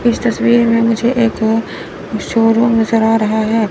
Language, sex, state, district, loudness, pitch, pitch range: Hindi, female, Chandigarh, Chandigarh, -14 LUFS, 225 Hz, 225-235 Hz